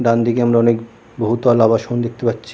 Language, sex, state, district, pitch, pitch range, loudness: Bengali, male, West Bengal, Kolkata, 115 Hz, 115-120 Hz, -16 LUFS